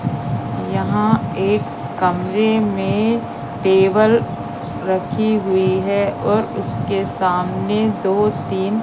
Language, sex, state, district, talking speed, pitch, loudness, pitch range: Hindi, female, Madhya Pradesh, Katni, 90 wpm, 190 Hz, -18 LUFS, 185-215 Hz